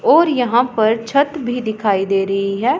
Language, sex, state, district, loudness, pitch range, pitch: Hindi, female, Punjab, Pathankot, -17 LUFS, 200-260 Hz, 235 Hz